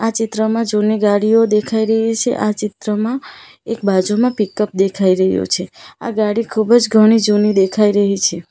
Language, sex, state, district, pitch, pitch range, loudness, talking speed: Gujarati, female, Gujarat, Valsad, 215 Hz, 205-225 Hz, -15 LUFS, 160 wpm